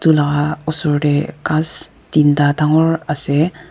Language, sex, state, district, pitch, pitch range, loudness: Nagamese, female, Nagaland, Dimapur, 150 Hz, 145-160 Hz, -16 LUFS